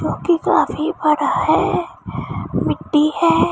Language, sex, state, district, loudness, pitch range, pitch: Hindi, female, Punjab, Pathankot, -18 LUFS, 300-345 Hz, 330 Hz